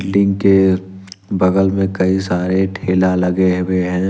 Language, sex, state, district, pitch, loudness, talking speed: Hindi, male, Jharkhand, Ranchi, 95 Hz, -15 LUFS, 145 wpm